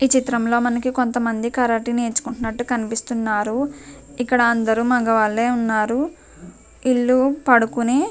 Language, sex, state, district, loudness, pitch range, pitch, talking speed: Telugu, female, Telangana, Nalgonda, -19 LUFS, 225-250 Hz, 240 Hz, 105 wpm